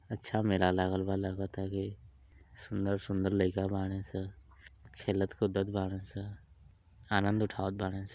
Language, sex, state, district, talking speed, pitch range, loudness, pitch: Bhojpuri, male, Uttar Pradesh, Ghazipur, 125 wpm, 95-100 Hz, -34 LUFS, 95 Hz